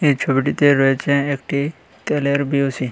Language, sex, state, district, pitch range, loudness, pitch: Bengali, male, Tripura, West Tripura, 135-145 Hz, -18 LUFS, 140 Hz